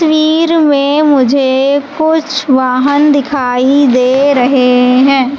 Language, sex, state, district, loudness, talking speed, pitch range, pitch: Hindi, female, Madhya Pradesh, Katni, -10 LUFS, 100 wpm, 260-295 Hz, 275 Hz